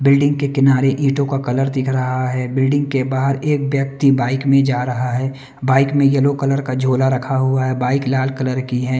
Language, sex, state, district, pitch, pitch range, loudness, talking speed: Hindi, male, Bihar, West Champaran, 135 Hz, 130-140 Hz, -17 LUFS, 220 wpm